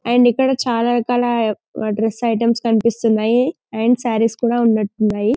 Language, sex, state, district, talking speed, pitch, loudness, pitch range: Telugu, female, Telangana, Karimnagar, 125 wpm, 230 Hz, -17 LUFS, 225-245 Hz